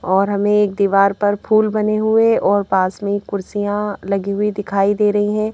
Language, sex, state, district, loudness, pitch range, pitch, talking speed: Hindi, female, Madhya Pradesh, Bhopal, -17 LUFS, 200-210 Hz, 205 Hz, 205 wpm